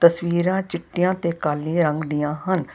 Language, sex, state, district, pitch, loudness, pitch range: Punjabi, female, Karnataka, Bangalore, 170 Hz, -22 LUFS, 155-180 Hz